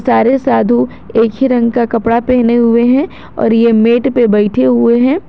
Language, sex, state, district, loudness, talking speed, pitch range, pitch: Hindi, female, Jharkhand, Garhwa, -11 LUFS, 195 wpm, 230-255 Hz, 235 Hz